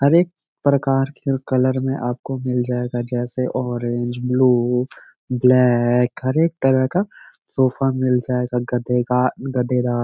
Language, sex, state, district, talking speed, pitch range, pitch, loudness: Hindi, male, Bihar, Gaya, 145 wpm, 125-135 Hz, 125 Hz, -20 LUFS